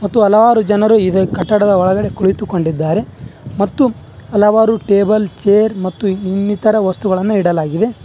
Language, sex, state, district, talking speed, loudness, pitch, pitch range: Kannada, male, Karnataka, Bangalore, 110 wpm, -13 LUFS, 205 Hz, 190-215 Hz